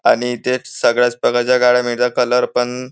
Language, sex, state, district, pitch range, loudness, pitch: Marathi, male, Maharashtra, Nagpur, 120-125 Hz, -16 LUFS, 125 Hz